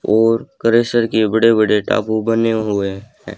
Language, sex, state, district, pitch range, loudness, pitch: Hindi, male, Haryana, Charkhi Dadri, 105-115 Hz, -16 LUFS, 110 Hz